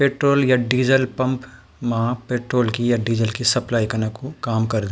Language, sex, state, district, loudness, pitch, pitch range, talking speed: Garhwali, male, Uttarakhand, Tehri Garhwal, -20 LUFS, 125 Hz, 115-130 Hz, 195 wpm